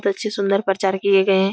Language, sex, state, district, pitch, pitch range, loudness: Hindi, female, Uttar Pradesh, Etah, 195 Hz, 195-200 Hz, -19 LUFS